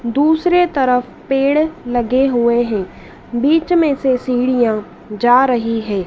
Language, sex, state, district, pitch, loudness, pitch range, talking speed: Hindi, female, Madhya Pradesh, Dhar, 250 Hz, -15 LUFS, 235-285 Hz, 130 wpm